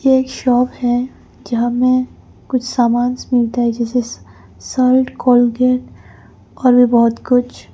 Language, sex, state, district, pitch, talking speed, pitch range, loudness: Hindi, female, Arunachal Pradesh, Papum Pare, 245 Hz, 130 wpm, 240-255 Hz, -15 LUFS